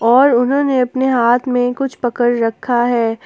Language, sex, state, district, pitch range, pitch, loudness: Hindi, female, Jharkhand, Ranchi, 240-260 Hz, 245 Hz, -15 LUFS